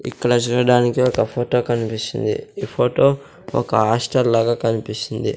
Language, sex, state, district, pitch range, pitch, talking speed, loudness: Telugu, male, Andhra Pradesh, Sri Satya Sai, 115-125 Hz, 120 Hz, 125 wpm, -19 LUFS